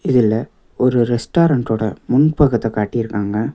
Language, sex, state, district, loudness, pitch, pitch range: Tamil, male, Tamil Nadu, Nilgiris, -17 LUFS, 120 Hz, 110-130 Hz